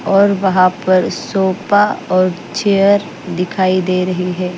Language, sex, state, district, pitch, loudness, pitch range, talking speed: Hindi, female, Bihar, Patna, 185 Hz, -14 LUFS, 185-200 Hz, 130 wpm